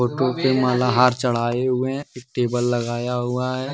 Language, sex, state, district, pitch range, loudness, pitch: Hindi, male, Jharkhand, Deoghar, 120-130 Hz, -21 LUFS, 125 Hz